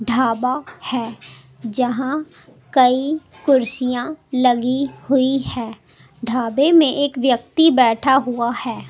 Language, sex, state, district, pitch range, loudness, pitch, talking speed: Hindi, female, Delhi, New Delhi, 240-270 Hz, -18 LUFS, 255 Hz, 100 wpm